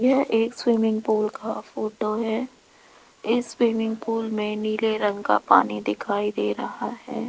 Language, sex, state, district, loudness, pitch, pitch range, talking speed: Hindi, female, Rajasthan, Jaipur, -24 LUFS, 220 Hz, 215-230 Hz, 155 wpm